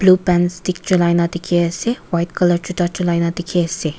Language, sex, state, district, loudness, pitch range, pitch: Nagamese, female, Nagaland, Kohima, -18 LUFS, 170-180 Hz, 175 Hz